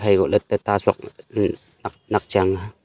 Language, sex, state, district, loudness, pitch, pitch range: Wancho, male, Arunachal Pradesh, Longding, -22 LUFS, 100 Hz, 95-100 Hz